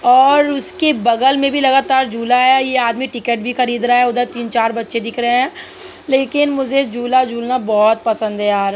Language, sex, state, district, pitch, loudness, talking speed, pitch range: Hindi, female, Uttar Pradesh, Budaun, 250 Hz, -15 LUFS, 205 wpm, 235-275 Hz